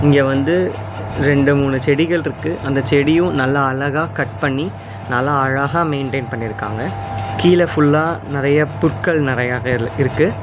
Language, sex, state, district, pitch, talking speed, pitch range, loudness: Tamil, male, Tamil Nadu, Nilgiris, 140 Hz, 125 wpm, 125-150 Hz, -17 LUFS